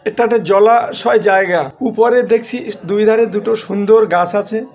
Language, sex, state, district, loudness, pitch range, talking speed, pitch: Bengali, male, West Bengal, North 24 Parganas, -13 LUFS, 200-230 Hz, 175 wpm, 220 Hz